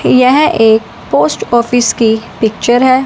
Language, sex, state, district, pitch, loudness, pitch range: Hindi, male, Punjab, Fazilka, 240 Hz, -11 LUFS, 225-255 Hz